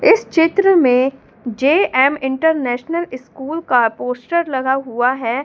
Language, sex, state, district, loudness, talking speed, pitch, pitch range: Hindi, female, Delhi, New Delhi, -16 LUFS, 120 wpm, 265 Hz, 250-325 Hz